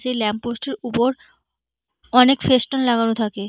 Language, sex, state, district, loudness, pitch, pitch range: Bengali, female, West Bengal, North 24 Parganas, -19 LUFS, 240 Hz, 225-255 Hz